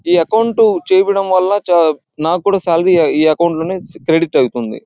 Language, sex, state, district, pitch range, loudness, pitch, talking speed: Telugu, male, Andhra Pradesh, Anantapur, 165-200 Hz, -13 LUFS, 175 Hz, 150 wpm